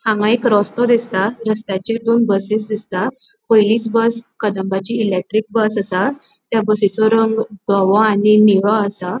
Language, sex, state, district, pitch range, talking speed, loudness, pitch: Konkani, female, Goa, North and South Goa, 200-225 Hz, 135 wpm, -16 LUFS, 215 Hz